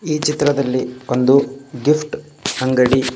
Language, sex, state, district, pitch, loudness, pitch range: Kannada, male, Karnataka, Bidar, 135 Hz, -17 LUFS, 130-150 Hz